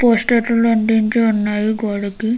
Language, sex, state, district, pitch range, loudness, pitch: Telugu, female, Andhra Pradesh, Krishna, 215-230 Hz, -16 LUFS, 225 Hz